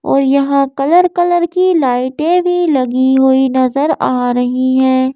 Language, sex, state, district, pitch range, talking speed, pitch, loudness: Hindi, female, Madhya Pradesh, Bhopal, 260-340 Hz, 150 wpm, 270 Hz, -12 LUFS